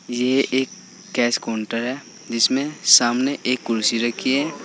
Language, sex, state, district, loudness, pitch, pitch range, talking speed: Hindi, male, Uttar Pradesh, Saharanpur, -20 LUFS, 125 Hz, 115-135 Hz, 140 wpm